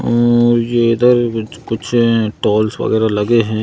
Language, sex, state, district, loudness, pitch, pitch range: Hindi, male, Madhya Pradesh, Bhopal, -14 LUFS, 115 Hz, 110-120 Hz